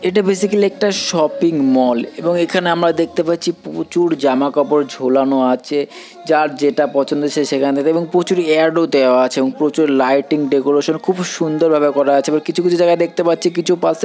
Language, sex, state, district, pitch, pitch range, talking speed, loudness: Bengali, male, West Bengal, Purulia, 155 Hz, 140-175 Hz, 190 wpm, -15 LUFS